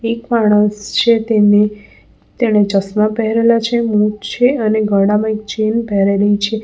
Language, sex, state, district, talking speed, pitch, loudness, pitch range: Gujarati, female, Gujarat, Valsad, 145 wpm, 215 Hz, -14 LUFS, 205-230 Hz